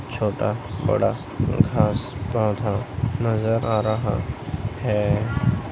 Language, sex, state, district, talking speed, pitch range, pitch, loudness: Hindi, male, Bihar, Madhepura, 85 wpm, 105-120 Hz, 110 Hz, -23 LUFS